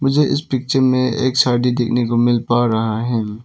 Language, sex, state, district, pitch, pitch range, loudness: Hindi, male, Arunachal Pradesh, Papum Pare, 120 Hz, 120-130 Hz, -17 LUFS